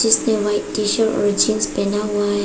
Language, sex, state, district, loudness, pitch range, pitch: Hindi, female, Arunachal Pradesh, Papum Pare, -18 LUFS, 205-220 Hz, 210 Hz